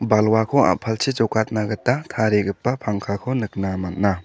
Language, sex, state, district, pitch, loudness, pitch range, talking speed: Garo, male, Meghalaya, South Garo Hills, 110 Hz, -21 LUFS, 100-125 Hz, 115 wpm